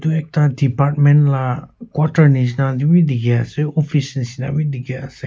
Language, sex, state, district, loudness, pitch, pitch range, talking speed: Nagamese, male, Nagaland, Kohima, -16 LUFS, 140 Hz, 130-150 Hz, 160 wpm